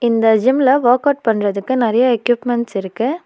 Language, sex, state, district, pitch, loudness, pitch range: Tamil, female, Tamil Nadu, Nilgiris, 240 Hz, -15 LUFS, 225-260 Hz